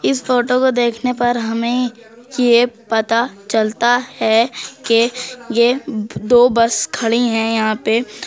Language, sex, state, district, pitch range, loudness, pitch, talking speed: Hindi, female, Uttar Pradesh, Jyotiba Phule Nagar, 225-250 Hz, -16 LUFS, 235 Hz, 130 wpm